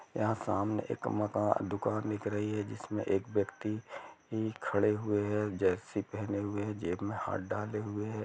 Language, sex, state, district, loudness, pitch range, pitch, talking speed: Hindi, male, Chhattisgarh, Rajnandgaon, -34 LUFS, 100-105 Hz, 105 Hz, 165 wpm